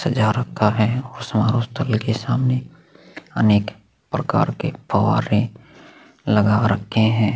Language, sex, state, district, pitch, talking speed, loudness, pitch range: Hindi, male, Chhattisgarh, Sukma, 110 Hz, 120 wpm, -20 LUFS, 105-120 Hz